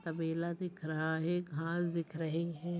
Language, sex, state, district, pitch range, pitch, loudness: Hindi, female, Chhattisgarh, Raigarh, 160-175 Hz, 165 Hz, -37 LUFS